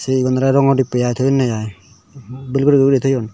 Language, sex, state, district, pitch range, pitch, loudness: Chakma, male, Tripura, Dhalai, 125-135 Hz, 130 Hz, -16 LUFS